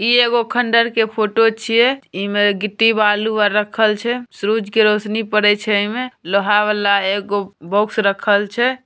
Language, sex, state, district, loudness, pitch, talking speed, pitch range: Angika, female, Bihar, Begusarai, -16 LUFS, 215 Hz, 155 wpm, 205-230 Hz